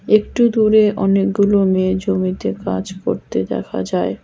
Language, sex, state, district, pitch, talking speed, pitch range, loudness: Bengali, female, West Bengal, Cooch Behar, 195 Hz, 125 wpm, 185-210 Hz, -17 LUFS